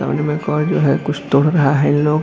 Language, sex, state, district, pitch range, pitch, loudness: Hindi, male, Jharkhand, Jamtara, 140-150 Hz, 145 Hz, -16 LUFS